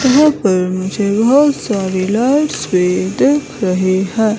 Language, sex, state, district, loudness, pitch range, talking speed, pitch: Hindi, female, Himachal Pradesh, Shimla, -14 LUFS, 185-270 Hz, 135 wpm, 205 Hz